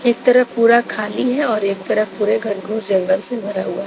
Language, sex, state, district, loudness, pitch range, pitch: Hindi, female, Bihar, West Champaran, -17 LUFS, 200-240 Hz, 220 Hz